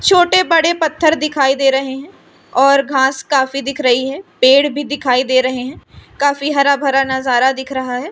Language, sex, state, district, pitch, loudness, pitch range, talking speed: Hindi, female, Madhya Pradesh, Umaria, 275 Hz, -14 LUFS, 260-290 Hz, 190 wpm